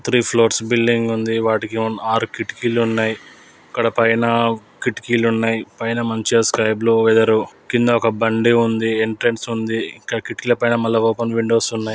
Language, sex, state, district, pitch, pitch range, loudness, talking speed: Telugu, male, Telangana, Nalgonda, 115 Hz, 110-115 Hz, -18 LUFS, 145 wpm